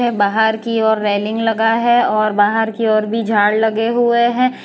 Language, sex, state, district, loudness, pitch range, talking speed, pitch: Hindi, female, Gujarat, Valsad, -15 LUFS, 215-230 Hz, 195 wpm, 220 Hz